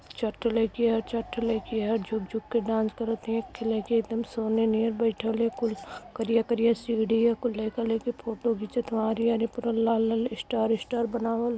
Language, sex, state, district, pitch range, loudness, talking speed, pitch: Hindi, female, Uttar Pradesh, Varanasi, 225-235 Hz, -28 LUFS, 135 wpm, 230 Hz